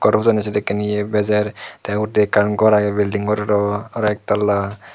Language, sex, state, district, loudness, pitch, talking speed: Chakma, male, Tripura, Dhalai, -18 LUFS, 105 Hz, 180 wpm